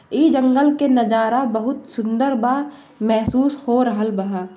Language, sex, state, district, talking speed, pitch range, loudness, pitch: Bhojpuri, female, Bihar, Gopalganj, 145 wpm, 225-275 Hz, -18 LUFS, 250 Hz